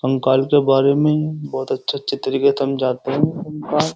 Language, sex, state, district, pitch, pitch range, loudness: Hindi, male, Uttar Pradesh, Jyotiba Phule Nagar, 140 Hz, 135-150 Hz, -18 LUFS